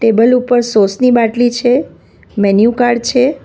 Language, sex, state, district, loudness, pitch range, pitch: Gujarati, female, Gujarat, Valsad, -12 LUFS, 225-250 Hz, 240 Hz